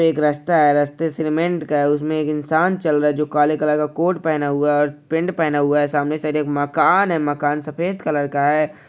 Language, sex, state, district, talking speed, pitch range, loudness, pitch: Hindi, male, Maharashtra, Pune, 245 wpm, 145-160 Hz, -19 LUFS, 150 Hz